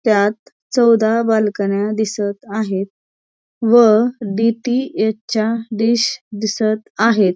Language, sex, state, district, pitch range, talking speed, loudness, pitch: Marathi, female, Maharashtra, Pune, 210-230 Hz, 90 wpm, -17 LUFS, 220 Hz